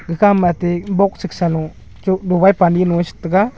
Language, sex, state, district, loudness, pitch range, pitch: Wancho, male, Arunachal Pradesh, Longding, -16 LUFS, 175-195 Hz, 180 Hz